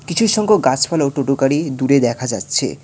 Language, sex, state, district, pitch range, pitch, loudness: Bengali, male, West Bengal, Alipurduar, 135-170 Hz, 140 Hz, -16 LUFS